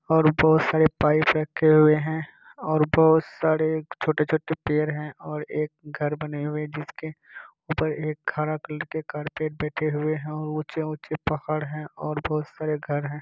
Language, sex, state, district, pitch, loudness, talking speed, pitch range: Hindi, male, Bihar, Kishanganj, 155 Hz, -25 LUFS, 165 wpm, 150-155 Hz